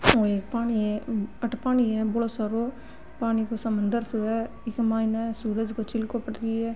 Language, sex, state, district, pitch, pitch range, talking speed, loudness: Marwari, female, Rajasthan, Nagaur, 225 Hz, 220-230 Hz, 195 wpm, -27 LUFS